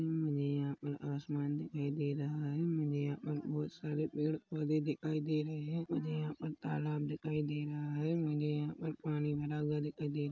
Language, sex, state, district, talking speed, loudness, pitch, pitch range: Hindi, male, Chhattisgarh, Rajnandgaon, 200 wpm, -38 LUFS, 150 Hz, 145-155 Hz